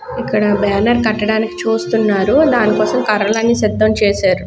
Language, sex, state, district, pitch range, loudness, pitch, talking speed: Telugu, female, Andhra Pradesh, Guntur, 200-225 Hz, -14 LUFS, 215 Hz, 120 wpm